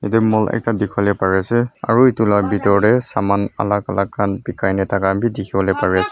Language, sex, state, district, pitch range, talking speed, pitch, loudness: Nagamese, male, Mizoram, Aizawl, 95-115 Hz, 195 wpm, 100 Hz, -17 LUFS